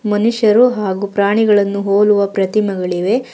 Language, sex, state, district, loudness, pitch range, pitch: Kannada, female, Karnataka, Bangalore, -14 LUFS, 200-220 Hz, 205 Hz